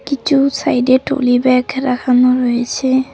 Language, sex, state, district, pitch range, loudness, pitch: Bengali, female, West Bengal, Cooch Behar, 250-270 Hz, -14 LUFS, 255 Hz